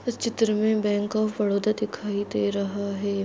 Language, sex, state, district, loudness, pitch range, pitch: Hindi, female, Rajasthan, Nagaur, -25 LUFS, 200-215 Hz, 210 Hz